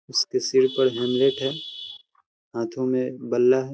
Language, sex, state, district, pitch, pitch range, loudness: Hindi, male, Uttar Pradesh, Hamirpur, 130 Hz, 125-140 Hz, -23 LUFS